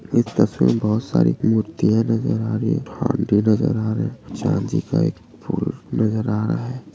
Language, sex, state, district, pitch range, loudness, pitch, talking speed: Hindi, male, Maharashtra, Dhule, 105-115 Hz, -21 LUFS, 110 Hz, 190 wpm